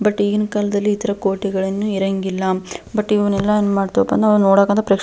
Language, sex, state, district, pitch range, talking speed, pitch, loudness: Kannada, female, Karnataka, Belgaum, 195-210 Hz, 180 wpm, 205 Hz, -18 LUFS